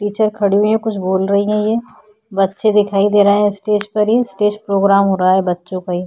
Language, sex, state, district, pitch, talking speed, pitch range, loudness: Hindi, female, Uttar Pradesh, Budaun, 205 Hz, 245 wpm, 195-210 Hz, -15 LUFS